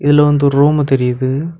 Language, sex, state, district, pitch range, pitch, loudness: Tamil, male, Tamil Nadu, Kanyakumari, 135-150 Hz, 145 Hz, -13 LUFS